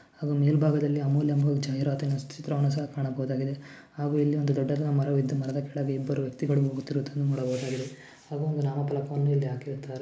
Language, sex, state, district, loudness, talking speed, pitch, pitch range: Kannada, male, Karnataka, Mysore, -28 LUFS, 155 wpm, 140 Hz, 135-145 Hz